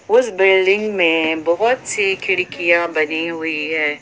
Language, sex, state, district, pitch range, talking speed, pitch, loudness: Hindi, female, Jharkhand, Ranchi, 160-245 Hz, 150 wpm, 170 Hz, -16 LUFS